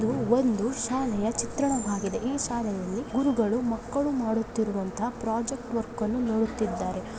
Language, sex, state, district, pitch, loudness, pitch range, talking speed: Kannada, female, Karnataka, Belgaum, 230 Hz, -28 LUFS, 220-250 Hz, 100 wpm